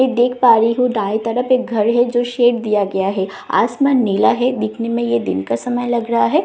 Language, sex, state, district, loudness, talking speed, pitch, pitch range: Hindi, female, Bihar, Katihar, -16 LUFS, 250 wpm, 235 Hz, 210-245 Hz